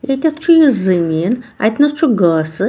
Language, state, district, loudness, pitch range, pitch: Kashmiri, Punjab, Kapurthala, -13 LUFS, 180-295 Hz, 240 Hz